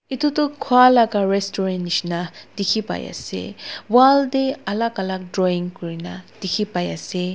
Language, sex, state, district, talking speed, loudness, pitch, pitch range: Nagamese, female, Nagaland, Dimapur, 155 wpm, -20 LUFS, 195 Hz, 180-250 Hz